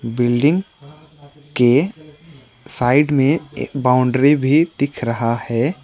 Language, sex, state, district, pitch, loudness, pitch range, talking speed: Hindi, male, West Bengal, Alipurduar, 140 Hz, -17 LUFS, 125-150 Hz, 105 wpm